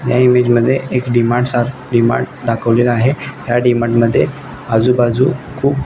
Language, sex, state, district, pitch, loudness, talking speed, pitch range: Marathi, male, Maharashtra, Nagpur, 120 Hz, -14 LUFS, 185 wpm, 120-130 Hz